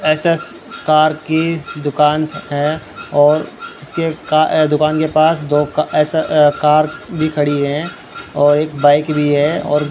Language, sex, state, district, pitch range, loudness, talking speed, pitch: Hindi, male, Rajasthan, Bikaner, 145-155 Hz, -15 LUFS, 160 wpm, 155 Hz